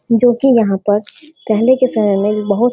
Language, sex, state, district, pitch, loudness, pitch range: Hindi, female, Bihar, Darbhanga, 230 Hz, -14 LUFS, 205-250 Hz